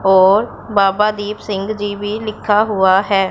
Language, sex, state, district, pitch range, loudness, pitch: Hindi, female, Punjab, Pathankot, 195-210 Hz, -15 LUFS, 205 Hz